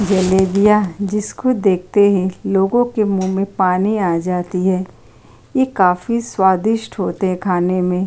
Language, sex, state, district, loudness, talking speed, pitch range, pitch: Hindi, female, Uttar Pradesh, Jyotiba Phule Nagar, -16 LUFS, 140 wpm, 185-210 Hz, 190 Hz